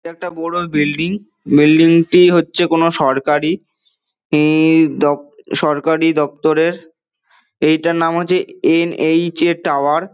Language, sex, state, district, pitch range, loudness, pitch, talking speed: Bengali, male, West Bengal, Dakshin Dinajpur, 150-170 Hz, -14 LUFS, 165 Hz, 130 wpm